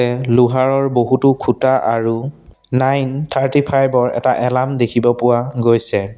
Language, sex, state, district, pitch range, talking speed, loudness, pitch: Assamese, male, Assam, Sonitpur, 120-135 Hz, 135 wpm, -15 LUFS, 125 Hz